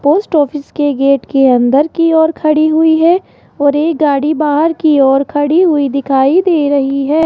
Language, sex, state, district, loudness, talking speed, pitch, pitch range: Hindi, female, Rajasthan, Jaipur, -11 LUFS, 190 wpm, 295 Hz, 280-320 Hz